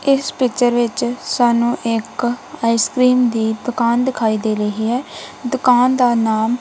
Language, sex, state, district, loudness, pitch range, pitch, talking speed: Punjabi, female, Punjab, Kapurthala, -17 LUFS, 225-250 Hz, 240 Hz, 145 wpm